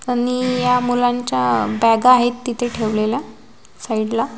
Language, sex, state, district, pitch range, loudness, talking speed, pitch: Marathi, female, Maharashtra, Washim, 220-250 Hz, -18 LUFS, 125 wpm, 245 Hz